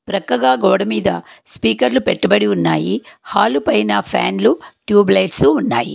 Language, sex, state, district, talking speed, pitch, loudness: Telugu, female, Telangana, Hyderabad, 110 wpm, 120 Hz, -15 LUFS